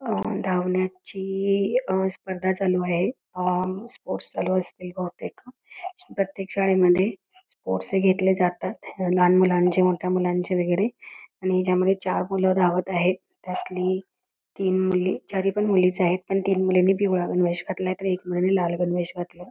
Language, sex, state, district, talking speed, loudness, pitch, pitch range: Marathi, female, Karnataka, Belgaum, 130 wpm, -24 LUFS, 185 Hz, 180-195 Hz